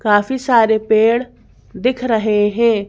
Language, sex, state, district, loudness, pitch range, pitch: Hindi, female, Madhya Pradesh, Bhopal, -15 LUFS, 215-240 Hz, 225 Hz